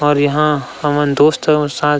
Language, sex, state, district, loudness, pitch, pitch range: Chhattisgarhi, male, Chhattisgarh, Rajnandgaon, -14 LUFS, 145 Hz, 145-150 Hz